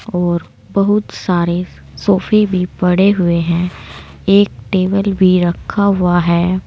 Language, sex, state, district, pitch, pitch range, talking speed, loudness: Hindi, female, Uttar Pradesh, Saharanpur, 185 Hz, 175-200 Hz, 125 wpm, -14 LUFS